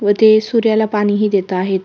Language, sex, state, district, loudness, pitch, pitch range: Marathi, female, Maharashtra, Solapur, -14 LUFS, 210 Hz, 200-220 Hz